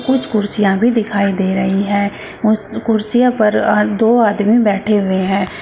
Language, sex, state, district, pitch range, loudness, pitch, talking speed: Hindi, female, Uttar Pradesh, Shamli, 200-225 Hz, -14 LUFS, 210 Hz, 170 wpm